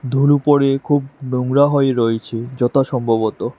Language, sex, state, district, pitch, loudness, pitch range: Bengali, male, Tripura, West Tripura, 135 Hz, -17 LUFS, 120-140 Hz